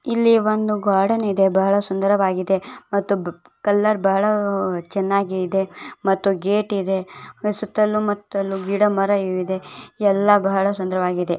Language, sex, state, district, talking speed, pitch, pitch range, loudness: Kannada, female, Karnataka, Bellary, 115 wpm, 200 Hz, 190-210 Hz, -20 LUFS